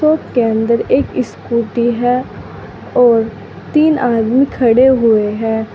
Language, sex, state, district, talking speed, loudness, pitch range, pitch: Hindi, female, Uttar Pradesh, Saharanpur, 125 wpm, -14 LUFS, 225-255 Hz, 235 Hz